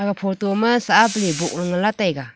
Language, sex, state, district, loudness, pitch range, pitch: Wancho, female, Arunachal Pradesh, Longding, -19 LUFS, 175-215 Hz, 200 Hz